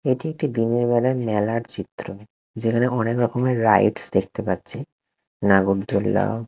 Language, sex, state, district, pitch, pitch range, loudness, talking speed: Bengali, male, Odisha, Khordha, 115 Hz, 105-120 Hz, -21 LUFS, 120 wpm